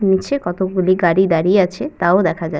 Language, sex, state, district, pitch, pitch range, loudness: Bengali, female, West Bengal, Purulia, 185 Hz, 175-190 Hz, -16 LUFS